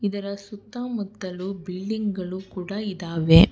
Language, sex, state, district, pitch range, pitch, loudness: Kannada, female, Karnataka, Bangalore, 185-205 Hz, 195 Hz, -26 LUFS